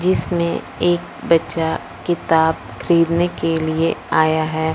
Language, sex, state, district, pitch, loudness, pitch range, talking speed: Hindi, male, Punjab, Fazilka, 165 Hz, -19 LUFS, 160-175 Hz, 115 wpm